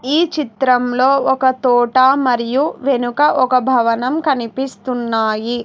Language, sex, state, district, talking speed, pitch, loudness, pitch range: Telugu, female, Telangana, Hyderabad, 95 wpm, 255 Hz, -15 LUFS, 240-270 Hz